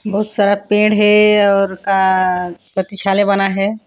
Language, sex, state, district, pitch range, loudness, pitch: Hindi, female, Chhattisgarh, Sarguja, 195-210 Hz, -14 LUFS, 200 Hz